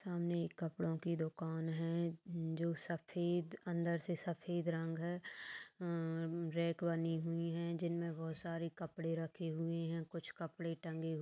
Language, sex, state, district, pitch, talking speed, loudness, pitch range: Hindi, female, Bihar, Purnia, 170 Hz, 150 wpm, -42 LUFS, 165-170 Hz